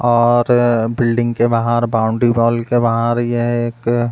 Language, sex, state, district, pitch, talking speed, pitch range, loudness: Hindi, male, Uttar Pradesh, Deoria, 120 Hz, 160 wpm, 115-120 Hz, -15 LUFS